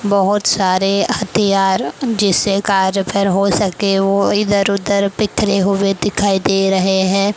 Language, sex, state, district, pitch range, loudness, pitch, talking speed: Hindi, female, Maharashtra, Mumbai Suburban, 195-205 Hz, -15 LUFS, 200 Hz, 145 wpm